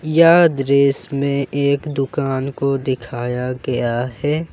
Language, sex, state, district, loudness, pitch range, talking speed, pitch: Hindi, male, Jharkhand, Ranchi, -18 LUFS, 130-140 Hz, 120 wpm, 140 Hz